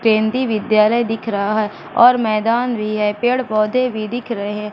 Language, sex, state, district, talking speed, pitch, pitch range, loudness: Hindi, female, Madhya Pradesh, Katni, 175 wpm, 220 Hz, 215-240 Hz, -17 LUFS